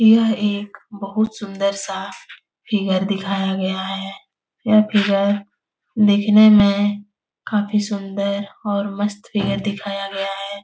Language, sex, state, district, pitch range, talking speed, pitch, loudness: Hindi, female, Bihar, Jahanabad, 195-210 Hz, 125 wpm, 200 Hz, -19 LUFS